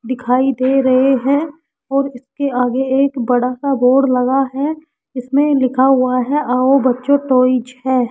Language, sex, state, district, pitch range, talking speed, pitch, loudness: Hindi, female, Rajasthan, Jaipur, 255-275 Hz, 155 wpm, 265 Hz, -15 LUFS